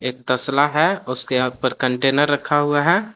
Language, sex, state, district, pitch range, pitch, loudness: Hindi, male, Jharkhand, Palamu, 130-145 Hz, 135 Hz, -18 LUFS